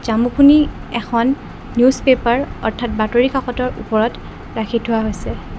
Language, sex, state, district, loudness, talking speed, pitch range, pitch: Assamese, female, Assam, Kamrup Metropolitan, -17 LUFS, 120 wpm, 225-255 Hz, 240 Hz